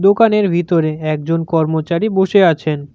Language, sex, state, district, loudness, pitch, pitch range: Bengali, male, West Bengal, Cooch Behar, -15 LUFS, 165 Hz, 155-195 Hz